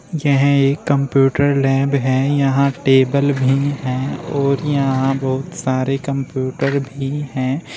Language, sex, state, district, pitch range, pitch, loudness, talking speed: Hindi, male, Uttar Pradesh, Shamli, 135-140 Hz, 135 Hz, -17 LUFS, 125 wpm